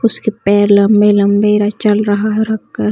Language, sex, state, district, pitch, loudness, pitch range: Hindi, female, Chhattisgarh, Bastar, 210 Hz, -12 LUFS, 205-215 Hz